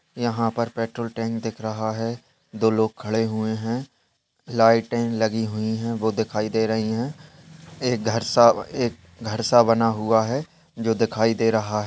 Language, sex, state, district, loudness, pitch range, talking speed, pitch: Hindi, male, Bihar, Darbhanga, -23 LUFS, 110-120 Hz, 175 wpm, 115 Hz